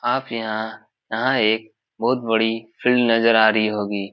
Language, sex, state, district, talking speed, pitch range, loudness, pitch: Hindi, male, Bihar, Supaul, 160 wpm, 110-115 Hz, -20 LUFS, 110 Hz